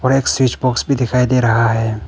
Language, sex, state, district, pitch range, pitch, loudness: Hindi, male, Arunachal Pradesh, Papum Pare, 115-130 Hz, 125 Hz, -15 LUFS